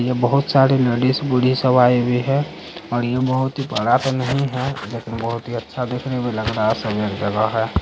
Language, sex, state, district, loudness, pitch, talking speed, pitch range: Hindi, male, Bihar, Saharsa, -19 LUFS, 125 Hz, 230 wpm, 115-130 Hz